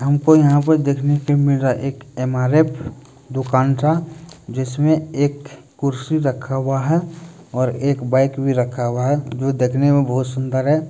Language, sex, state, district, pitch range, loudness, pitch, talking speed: Hindi, male, Bihar, Purnia, 130-150 Hz, -18 LUFS, 135 Hz, 165 wpm